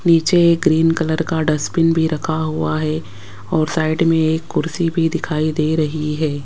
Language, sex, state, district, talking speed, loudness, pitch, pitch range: Hindi, female, Rajasthan, Jaipur, 185 wpm, -18 LUFS, 160 Hz, 155-165 Hz